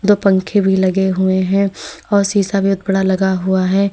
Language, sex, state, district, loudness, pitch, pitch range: Hindi, female, Uttar Pradesh, Lalitpur, -15 LUFS, 195 Hz, 190-200 Hz